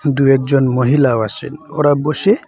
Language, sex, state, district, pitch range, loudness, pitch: Bengali, male, Assam, Hailakandi, 135-150 Hz, -14 LUFS, 140 Hz